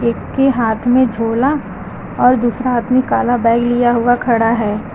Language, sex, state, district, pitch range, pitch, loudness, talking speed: Hindi, female, Uttar Pradesh, Lucknow, 230-250 Hz, 240 Hz, -14 LUFS, 180 wpm